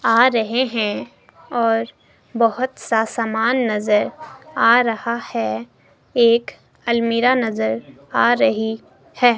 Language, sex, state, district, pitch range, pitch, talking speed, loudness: Hindi, female, Himachal Pradesh, Shimla, 220-240 Hz, 230 Hz, 110 wpm, -19 LUFS